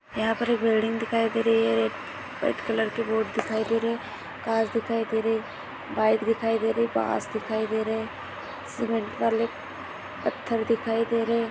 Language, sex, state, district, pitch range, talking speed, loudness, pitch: Hindi, female, Goa, North and South Goa, 220-230 Hz, 210 wpm, -26 LUFS, 225 Hz